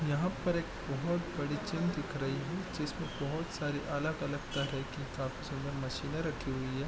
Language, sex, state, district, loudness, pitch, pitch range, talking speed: Hindi, male, Bihar, East Champaran, -36 LUFS, 145 Hz, 140-165 Hz, 185 wpm